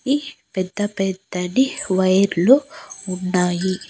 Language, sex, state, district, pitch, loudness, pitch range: Telugu, female, Andhra Pradesh, Annamaya, 190 Hz, -20 LUFS, 185-265 Hz